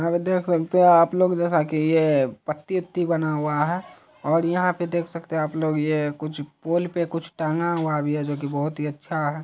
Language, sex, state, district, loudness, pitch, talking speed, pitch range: Hindi, male, Bihar, Araria, -23 LUFS, 160 Hz, 230 wpm, 150-175 Hz